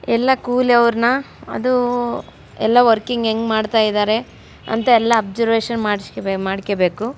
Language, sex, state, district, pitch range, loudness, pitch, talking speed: Kannada, female, Karnataka, Raichur, 215-240 Hz, -17 LUFS, 230 Hz, 100 wpm